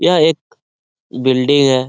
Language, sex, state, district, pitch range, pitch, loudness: Hindi, male, Bihar, Lakhisarai, 130-145 Hz, 130 Hz, -14 LUFS